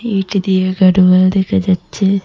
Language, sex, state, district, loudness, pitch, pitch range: Bengali, female, Assam, Hailakandi, -13 LUFS, 190 Hz, 185-195 Hz